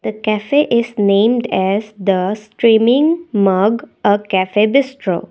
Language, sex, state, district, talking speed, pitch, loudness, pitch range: English, female, Assam, Kamrup Metropolitan, 125 wpm, 215 Hz, -15 LUFS, 200-235 Hz